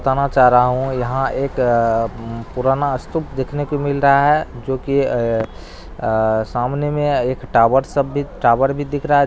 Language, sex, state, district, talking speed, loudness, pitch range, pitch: Bhojpuri, male, Bihar, Saran, 150 wpm, -18 LUFS, 120-140 Hz, 135 Hz